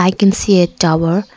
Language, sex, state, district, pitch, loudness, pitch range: English, female, Arunachal Pradesh, Lower Dibang Valley, 185 Hz, -13 LUFS, 170-200 Hz